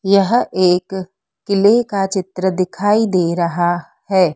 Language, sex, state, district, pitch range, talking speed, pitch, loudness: Hindi, female, Madhya Pradesh, Dhar, 180-200 Hz, 125 wpm, 190 Hz, -16 LUFS